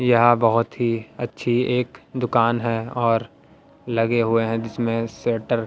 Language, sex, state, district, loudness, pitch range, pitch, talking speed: Hindi, male, Haryana, Jhajjar, -21 LUFS, 115-120 Hz, 115 Hz, 150 wpm